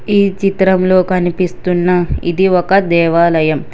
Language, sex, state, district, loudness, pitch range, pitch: Telugu, male, Telangana, Hyderabad, -13 LUFS, 175-190 Hz, 180 Hz